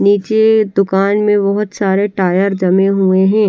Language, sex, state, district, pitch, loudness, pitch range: Hindi, female, Bihar, Katihar, 200 Hz, -13 LUFS, 190-210 Hz